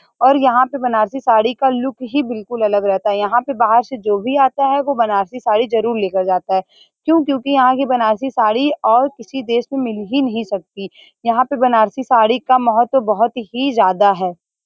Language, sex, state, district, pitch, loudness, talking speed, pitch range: Hindi, female, Uttar Pradesh, Varanasi, 240 Hz, -16 LUFS, 215 wpm, 215-265 Hz